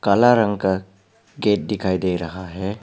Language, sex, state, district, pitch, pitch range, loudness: Hindi, male, Arunachal Pradesh, Papum Pare, 95 Hz, 95-105 Hz, -20 LUFS